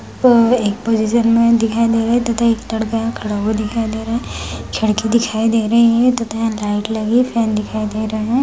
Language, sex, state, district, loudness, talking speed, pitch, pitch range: Hindi, female, Bihar, Madhepura, -16 LUFS, 235 wpm, 225 Hz, 220-235 Hz